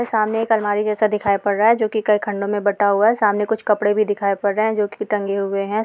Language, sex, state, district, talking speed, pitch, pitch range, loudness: Hindi, female, Bihar, Jamui, 300 wpm, 210 Hz, 205-215 Hz, -19 LUFS